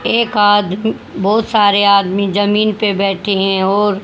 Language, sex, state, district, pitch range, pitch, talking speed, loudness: Hindi, female, Haryana, Jhajjar, 195-210 Hz, 205 Hz, 150 wpm, -13 LUFS